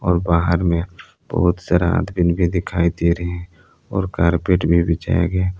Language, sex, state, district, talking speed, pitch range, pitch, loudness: Hindi, male, Jharkhand, Palamu, 180 wpm, 85-90 Hz, 85 Hz, -19 LUFS